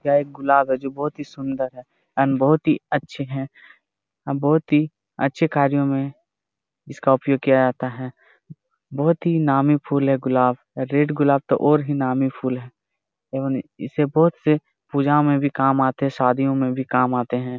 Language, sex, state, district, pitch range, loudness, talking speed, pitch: Hindi, male, Jharkhand, Jamtara, 130-145 Hz, -21 LUFS, 185 wpm, 140 Hz